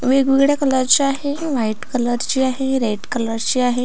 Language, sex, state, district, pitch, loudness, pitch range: Marathi, female, Maharashtra, Pune, 260 Hz, -18 LUFS, 245-275 Hz